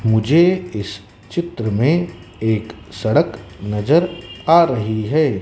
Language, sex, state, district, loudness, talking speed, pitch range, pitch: Hindi, male, Madhya Pradesh, Dhar, -18 LUFS, 110 wpm, 105-160 Hz, 110 Hz